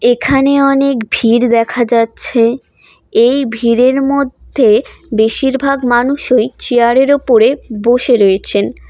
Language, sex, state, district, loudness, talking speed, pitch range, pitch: Bengali, female, West Bengal, Cooch Behar, -12 LUFS, 95 wpm, 235-275 Hz, 245 Hz